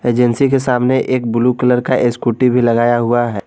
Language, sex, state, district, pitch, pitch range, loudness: Hindi, male, Jharkhand, Garhwa, 125 Hz, 120-125 Hz, -14 LUFS